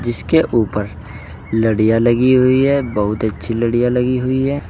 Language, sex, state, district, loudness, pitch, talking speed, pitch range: Hindi, male, Uttar Pradesh, Saharanpur, -16 LUFS, 115 Hz, 155 wpm, 110-130 Hz